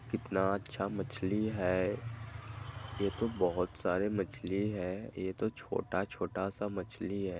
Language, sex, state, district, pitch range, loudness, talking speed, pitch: Hindi, male, Bihar, Vaishali, 95-110 Hz, -36 LUFS, 130 wpm, 100 Hz